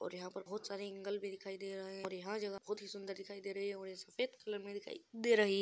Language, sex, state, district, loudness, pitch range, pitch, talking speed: Hindi, male, Bihar, Madhepura, -42 LUFS, 195-210 Hz, 200 Hz, 320 wpm